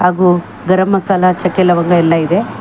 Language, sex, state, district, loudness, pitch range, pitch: Kannada, female, Karnataka, Bangalore, -12 LUFS, 175-185 Hz, 180 Hz